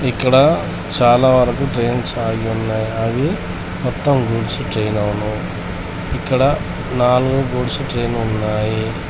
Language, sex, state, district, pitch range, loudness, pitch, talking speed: Telugu, male, Telangana, Komaram Bheem, 110-125 Hz, -17 LUFS, 115 Hz, 105 wpm